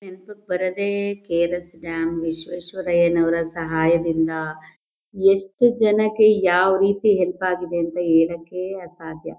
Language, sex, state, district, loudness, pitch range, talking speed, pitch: Kannada, female, Karnataka, Mysore, -20 LUFS, 165-195 Hz, 110 wpm, 175 Hz